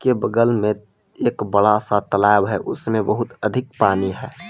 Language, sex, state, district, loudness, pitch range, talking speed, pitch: Hindi, male, Jharkhand, Palamu, -19 LUFS, 100-120 Hz, 175 wpm, 105 Hz